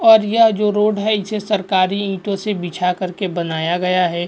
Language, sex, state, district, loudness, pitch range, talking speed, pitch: Hindi, male, Goa, North and South Goa, -18 LUFS, 180-210 Hz, 210 wpm, 195 Hz